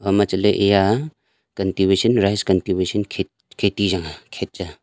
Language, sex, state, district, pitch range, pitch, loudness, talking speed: Wancho, male, Arunachal Pradesh, Longding, 95-105 Hz, 100 Hz, -20 LUFS, 175 wpm